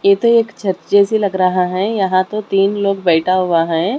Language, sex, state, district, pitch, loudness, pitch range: Hindi, male, Delhi, New Delhi, 195 Hz, -15 LUFS, 185-205 Hz